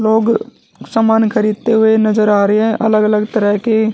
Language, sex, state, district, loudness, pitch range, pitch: Hindi, male, Haryana, Jhajjar, -13 LUFS, 215-225 Hz, 220 Hz